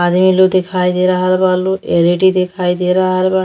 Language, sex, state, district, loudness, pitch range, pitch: Bhojpuri, female, Uttar Pradesh, Deoria, -13 LUFS, 180-185 Hz, 185 Hz